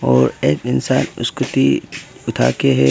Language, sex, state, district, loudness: Hindi, male, Arunachal Pradesh, Papum Pare, -17 LUFS